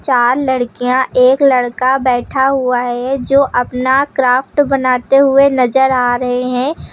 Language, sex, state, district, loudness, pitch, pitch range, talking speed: Hindi, female, Uttar Pradesh, Lucknow, -13 LUFS, 255 Hz, 250-270 Hz, 140 wpm